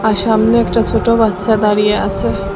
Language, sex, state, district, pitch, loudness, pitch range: Bengali, female, Assam, Hailakandi, 220 Hz, -13 LUFS, 210-225 Hz